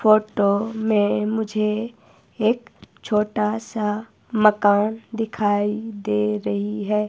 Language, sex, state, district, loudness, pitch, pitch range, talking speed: Hindi, female, Himachal Pradesh, Shimla, -22 LUFS, 210 Hz, 205-220 Hz, 95 wpm